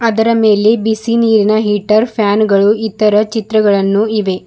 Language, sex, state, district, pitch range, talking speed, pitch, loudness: Kannada, female, Karnataka, Bidar, 205-220 Hz, 135 wpm, 215 Hz, -12 LUFS